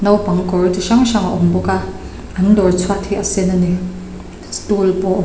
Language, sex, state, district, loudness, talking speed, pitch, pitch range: Mizo, female, Mizoram, Aizawl, -15 LUFS, 250 wpm, 185 Hz, 180-200 Hz